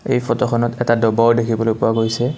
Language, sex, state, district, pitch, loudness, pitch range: Assamese, male, Assam, Kamrup Metropolitan, 115 Hz, -17 LUFS, 115-120 Hz